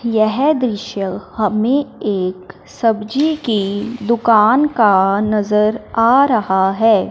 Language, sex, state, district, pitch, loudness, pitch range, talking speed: Hindi, male, Punjab, Fazilka, 215 Hz, -15 LUFS, 205-240 Hz, 100 wpm